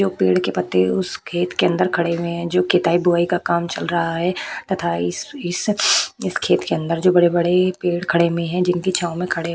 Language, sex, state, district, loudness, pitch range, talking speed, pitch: Hindi, female, Uttar Pradesh, Budaun, -19 LUFS, 170-180 Hz, 225 wpm, 170 Hz